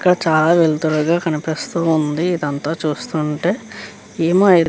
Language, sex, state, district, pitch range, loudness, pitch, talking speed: Telugu, female, Andhra Pradesh, Chittoor, 155-170 Hz, -18 LUFS, 160 Hz, 130 wpm